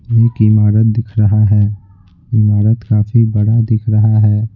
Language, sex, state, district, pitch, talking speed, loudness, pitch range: Hindi, male, Bihar, Patna, 110 Hz, 145 wpm, -12 LUFS, 105-110 Hz